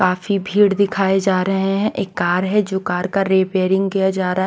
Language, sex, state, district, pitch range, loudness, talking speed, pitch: Hindi, female, Maharashtra, Washim, 185-195 Hz, -18 LUFS, 230 wpm, 190 Hz